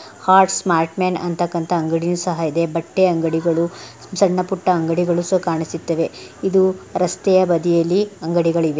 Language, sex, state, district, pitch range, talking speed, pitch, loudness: Kannada, female, Karnataka, Dakshina Kannada, 165-185 Hz, 130 wpm, 175 Hz, -18 LUFS